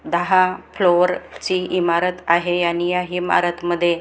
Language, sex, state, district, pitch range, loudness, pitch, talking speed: Marathi, female, Maharashtra, Gondia, 175-180 Hz, -19 LUFS, 175 Hz, 135 wpm